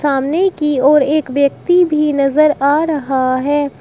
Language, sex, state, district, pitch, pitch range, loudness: Hindi, female, Uttar Pradesh, Shamli, 290 Hz, 275-305 Hz, -14 LUFS